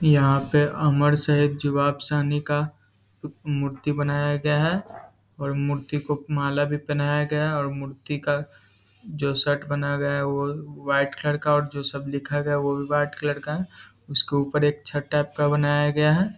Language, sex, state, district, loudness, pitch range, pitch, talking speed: Hindi, male, Bihar, Muzaffarpur, -24 LUFS, 140-150 Hz, 145 Hz, 185 wpm